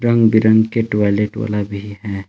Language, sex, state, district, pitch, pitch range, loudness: Hindi, male, Jharkhand, Palamu, 105 Hz, 105-110 Hz, -16 LUFS